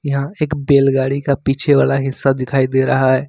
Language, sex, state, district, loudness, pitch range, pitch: Hindi, male, Jharkhand, Ranchi, -16 LUFS, 135-140 Hz, 135 Hz